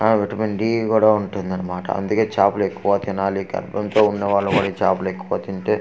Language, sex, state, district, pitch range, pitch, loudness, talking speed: Telugu, male, Andhra Pradesh, Manyam, 95-110 Hz, 100 Hz, -20 LUFS, 195 wpm